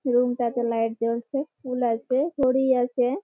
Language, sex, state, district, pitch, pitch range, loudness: Bengali, female, West Bengal, Malda, 250 Hz, 235-260 Hz, -24 LUFS